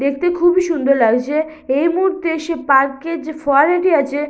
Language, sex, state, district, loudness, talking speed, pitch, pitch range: Bengali, female, West Bengal, Purulia, -16 LUFS, 165 wpm, 310 Hz, 280-335 Hz